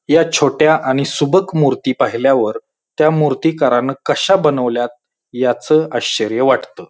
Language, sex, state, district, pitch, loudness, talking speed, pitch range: Marathi, male, Maharashtra, Pune, 150 Hz, -15 LUFS, 115 wpm, 130-160 Hz